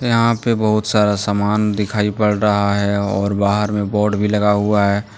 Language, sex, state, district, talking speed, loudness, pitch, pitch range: Hindi, male, Jharkhand, Deoghar, 195 wpm, -17 LUFS, 105 Hz, 100-105 Hz